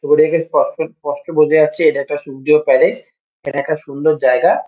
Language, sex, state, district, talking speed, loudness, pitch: Bengali, male, West Bengal, Kolkata, 190 wpm, -15 LUFS, 155 Hz